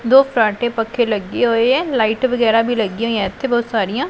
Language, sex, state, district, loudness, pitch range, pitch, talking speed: Punjabi, female, Punjab, Pathankot, -17 LUFS, 220-245 Hz, 230 Hz, 220 wpm